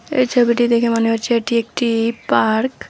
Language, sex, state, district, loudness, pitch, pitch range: Bengali, female, West Bengal, Alipurduar, -17 LUFS, 235 Hz, 230-240 Hz